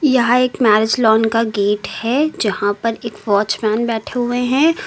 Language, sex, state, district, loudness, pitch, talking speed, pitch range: Hindi, female, Uttar Pradesh, Lucknow, -16 LUFS, 230 Hz, 170 wpm, 215-250 Hz